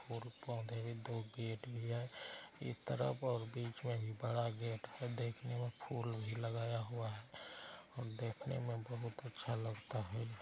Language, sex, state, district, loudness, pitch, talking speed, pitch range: Hindi, male, Bihar, Araria, -44 LUFS, 115 Hz, 160 wpm, 115-120 Hz